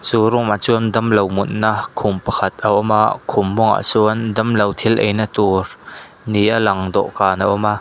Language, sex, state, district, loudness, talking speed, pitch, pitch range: Mizo, male, Mizoram, Aizawl, -16 LUFS, 190 wpm, 105 Hz, 100-110 Hz